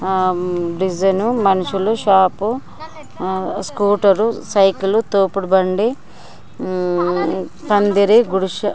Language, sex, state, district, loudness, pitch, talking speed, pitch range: Telugu, female, Andhra Pradesh, Anantapur, -17 LUFS, 195 Hz, 80 wpm, 190-210 Hz